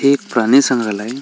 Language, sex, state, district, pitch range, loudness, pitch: Marathi, male, Maharashtra, Sindhudurg, 115-140 Hz, -15 LUFS, 125 Hz